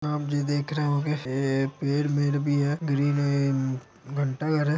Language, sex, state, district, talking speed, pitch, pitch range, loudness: Hindi, male, Chhattisgarh, Bilaspur, 215 wpm, 145 Hz, 140-150 Hz, -26 LUFS